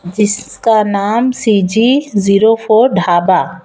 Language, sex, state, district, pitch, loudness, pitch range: Hindi, female, Chhattisgarh, Raipur, 210 Hz, -12 LUFS, 195-225 Hz